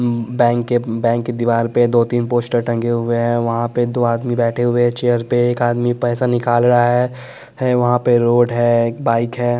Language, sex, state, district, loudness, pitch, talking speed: Hindi, male, Bihar, West Champaran, -16 LUFS, 120 Hz, 210 wpm